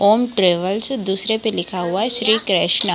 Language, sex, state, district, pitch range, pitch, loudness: Hindi, female, Bihar, Kishanganj, 185-220 Hz, 200 Hz, -18 LUFS